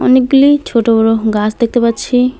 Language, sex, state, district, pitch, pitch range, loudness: Bengali, female, West Bengal, Alipurduar, 235 Hz, 225-260 Hz, -12 LUFS